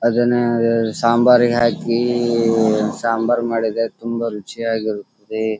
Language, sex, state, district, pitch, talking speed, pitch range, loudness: Kannada, female, Karnataka, Dharwad, 115 Hz, 105 wpm, 110-120 Hz, -18 LUFS